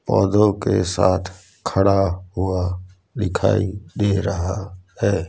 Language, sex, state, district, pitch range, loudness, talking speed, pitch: Hindi, male, Gujarat, Gandhinagar, 90-100 Hz, -20 LUFS, 100 wpm, 95 Hz